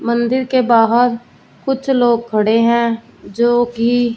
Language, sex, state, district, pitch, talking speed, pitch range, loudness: Hindi, female, Punjab, Fazilka, 235 Hz, 115 wpm, 230-245 Hz, -15 LUFS